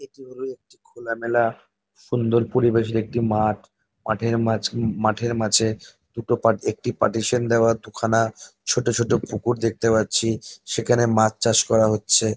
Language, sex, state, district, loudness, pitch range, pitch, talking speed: Bengali, male, West Bengal, North 24 Parganas, -21 LUFS, 110-120 Hz, 115 Hz, 150 wpm